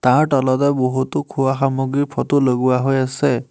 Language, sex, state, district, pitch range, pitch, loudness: Assamese, male, Assam, Hailakandi, 130-140 Hz, 135 Hz, -18 LUFS